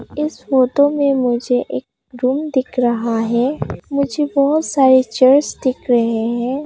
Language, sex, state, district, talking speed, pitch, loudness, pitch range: Hindi, female, Arunachal Pradesh, Papum Pare, 145 wpm, 260 Hz, -16 LUFS, 245-285 Hz